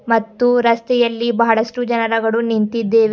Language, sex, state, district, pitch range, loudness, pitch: Kannada, female, Karnataka, Bidar, 225-235 Hz, -16 LUFS, 230 Hz